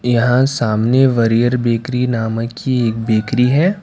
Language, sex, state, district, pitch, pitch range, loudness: Hindi, male, Karnataka, Bangalore, 120 Hz, 115-125 Hz, -15 LUFS